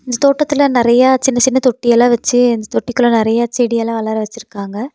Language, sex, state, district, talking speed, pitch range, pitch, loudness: Tamil, female, Tamil Nadu, Nilgiris, 195 wpm, 230-255 Hz, 240 Hz, -13 LUFS